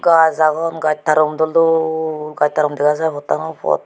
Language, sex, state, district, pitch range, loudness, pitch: Chakma, female, Tripura, Unakoti, 150-160 Hz, -16 LUFS, 155 Hz